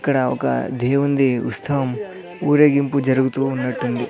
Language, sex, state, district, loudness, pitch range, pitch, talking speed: Telugu, male, Andhra Pradesh, Sri Satya Sai, -19 LUFS, 130-145 Hz, 135 Hz, 115 wpm